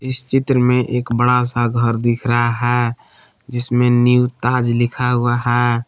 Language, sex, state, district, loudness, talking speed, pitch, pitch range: Hindi, male, Jharkhand, Palamu, -16 LUFS, 165 wpm, 120 Hz, 120-125 Hz